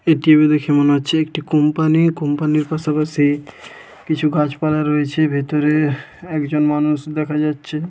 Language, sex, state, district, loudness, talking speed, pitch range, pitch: Bengali, male, West Bengal, Paschim Medinipur, -17 LUFS, 130 wpm, 150-155 Hz, 150 Hz